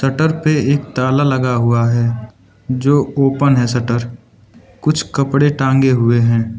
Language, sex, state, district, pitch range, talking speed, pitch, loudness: Hindi, male, Arunachal Pradesh, Lower Dibang Valley, 120-140 Hz, 145 wpm, 130 Hz, -15 LUFS